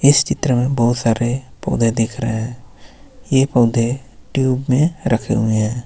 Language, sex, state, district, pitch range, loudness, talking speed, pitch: Hindi, male, Jharkhand, Ranchi, 115-130 Hz, -17 LUFS, 165 wpm, 120 Hz